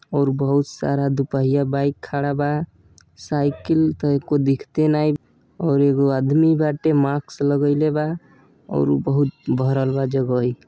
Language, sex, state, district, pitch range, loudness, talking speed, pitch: Bhojpuri, male, Uttar Pradesh, Deoria, 135-150 Hz, -20 LUFS, 140 wpm, 140 Hz